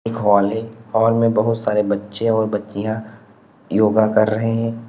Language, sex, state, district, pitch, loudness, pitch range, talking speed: Hindi, male, Uttar Pradesh, Lalitpur, 110 Hz, -18 LUFS, 105-115 Hz, 160 wpm